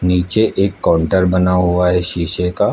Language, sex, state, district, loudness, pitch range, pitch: Hindi, male, Uttar Pradesh, Lucknow, -15 LUFS, 90-95 Hz, 90 Hz